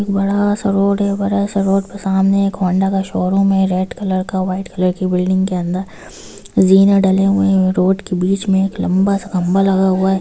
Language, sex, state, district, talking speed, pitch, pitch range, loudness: Hindi, female, Bihar, Gopalganj, 200 wpm, 195 Hz, 185-195 Hz, -15 LUFS